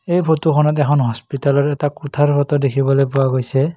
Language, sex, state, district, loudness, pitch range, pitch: Assamese, male, Assam, Kamrup Metropolitan, -16 LUFS, 135-150 Hz, 145 Hz